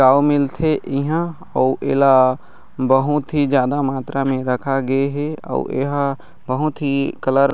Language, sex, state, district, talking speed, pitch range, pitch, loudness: Chhattisgarhi, male, Chhattisgarh, Raigarh, 150 wpm, 135-145 Hz, 140 Hz, -19 LUFS